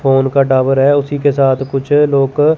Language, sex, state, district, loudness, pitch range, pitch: Hindi, male, Chandigarh, Chandigarh, -13 LUFS, 135-145 Hz, 135 Hz